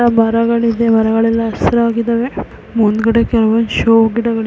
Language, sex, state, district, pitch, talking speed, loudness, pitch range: Kannada, female, Karnataka, Mysore, 230 Hz, 105 wpm, -13 LUFS, 225-230 Hz